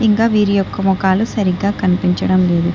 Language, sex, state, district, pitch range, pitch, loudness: Telugu, female, Telangana, Hyderabad, 180-205 Hz, 195 Hz, -15 LUFS